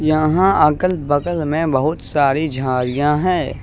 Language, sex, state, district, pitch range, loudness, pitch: Hindi, male, Jharkhand, Deoghar, 145-165 Hz, -17 LUFS, 155 Hz